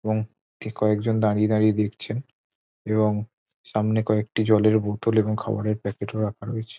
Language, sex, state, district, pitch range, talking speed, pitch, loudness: Bengali, male, West Bengal, Jhargram, 105-110 Hz, 140 wpm, 110 Hz, -24 LUFS